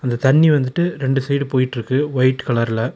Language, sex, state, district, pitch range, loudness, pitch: Tamil, male, Tamil Nadu, Nilgiris, 125-140 Hz, -18 LUFS, 130 Hz